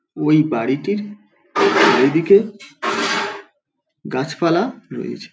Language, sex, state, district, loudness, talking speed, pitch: Bengali, male, West Bengal, Paschim Medinipur, -18 LUFS, 55 wpm, 205 Hz